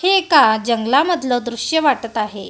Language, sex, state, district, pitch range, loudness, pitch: Marathi, female, Maharashtra, Gondia, 230-315 Hz, -16 LUFS, 245 Hz